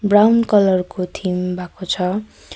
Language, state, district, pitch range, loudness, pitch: Nepali, West Bengal, Darjeeling, 180-205 Hz, -18 LUFS, 190 Hz